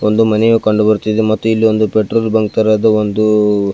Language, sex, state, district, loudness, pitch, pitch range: Kannada, male, Karnataka, Belgaum, -13 LUFS, 110 Hz, 105-110 Hz